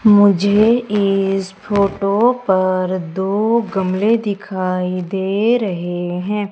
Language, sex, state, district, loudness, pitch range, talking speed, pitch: Hindi, female, Madhya Pradesh, Umaria, -17 LUFS, 185-210 Hz, 90 wpm, 195 Hz